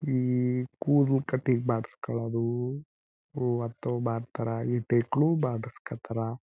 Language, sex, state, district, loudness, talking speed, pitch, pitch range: Kannada, male, Karnataka, Chamarajanagar, -29 LUFS, 85 wpm, 120 Hz, 115-130 Hz